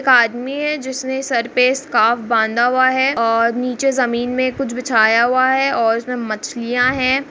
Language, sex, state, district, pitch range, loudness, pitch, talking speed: Hindi, female, Bihar, Muzaffarpur, 235-260 Hz, -16 LUFS, 250 Hz, 180 wpm